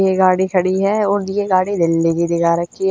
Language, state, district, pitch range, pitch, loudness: Haryanvi, Haryana, Rohtak, 170-195 Hz, 185 Hz, -16 LUFS